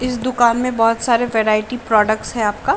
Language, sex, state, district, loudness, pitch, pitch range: Hindi, female, Bihar, Saran, -17 LUFS, 230 Hz, 215-245 Hz